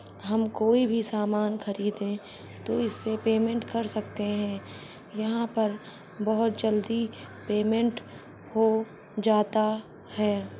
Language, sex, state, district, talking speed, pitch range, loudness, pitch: Hindi, female, Uttar Pradesh, Budaun, 110 wpm, 210-225 Hz, -28 LUFS, 215 Hz